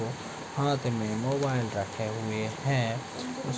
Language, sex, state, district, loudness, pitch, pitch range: Hindi, male, Uttar Pradesh, Deoria, -31 LUFS, 115 Hz, 110-135 Hz